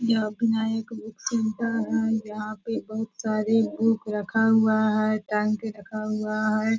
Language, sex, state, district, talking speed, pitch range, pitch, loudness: Hindi, female, Bihar, Purnia, 140 wpm, 215-225 Hz, 220 Hz, -25 LUFS